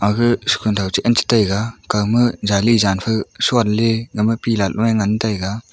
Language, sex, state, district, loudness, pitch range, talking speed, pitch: Wancho, female, Arunachal Pradesh, Longding, -17 LUFS, 105-115 Hz, 155 wpm, 110 Hz